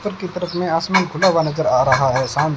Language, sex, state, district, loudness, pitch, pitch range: Hindi, male, Rajasthan, Bikaner, -18 LUFS, 165 Hz, 150-180 Hz